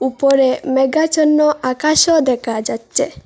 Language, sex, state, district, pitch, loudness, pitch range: Bengali, female, Assam, Hailakandi, 275 Hz, -15 LUFS, 260-305 Hz